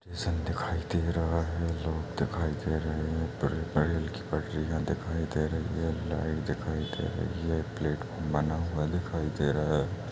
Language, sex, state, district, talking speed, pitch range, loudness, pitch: Hindi, male, Uttar Pradesh, Deoria, 170 wpm, 75-85 Hz, -31 LUFS, 80 Hz